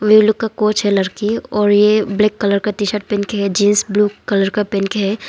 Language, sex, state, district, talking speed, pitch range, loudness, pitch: Hindi, female, Arunachal Pradesh, Longding, 260 wpm, 200-210 Hz, -16 LUFS, 210 Hz